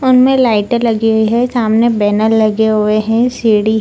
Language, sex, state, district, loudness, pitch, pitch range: Hindi, female, Bihar, Purnia, -12 LUFS, 225 Hz, 215-240 Hz